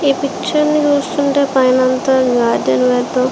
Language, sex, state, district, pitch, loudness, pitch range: Telugu, female, Andhra Pradesh, Srikakulam, 265 Hz, -14 LUFS, 255-285 Hz